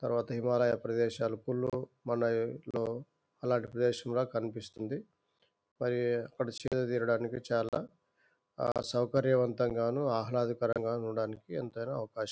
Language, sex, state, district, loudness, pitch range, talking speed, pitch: Telugu, male, Andhra Pradesh, Anantapur, -33 LUFS, 115-125 Hz, 110 wpm, 120 Hz